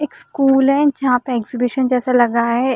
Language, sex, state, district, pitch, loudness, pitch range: Hindi, female, Uttar Pradesh, Budaun, 255 Hz, -16 LUFS, 245-270 Hz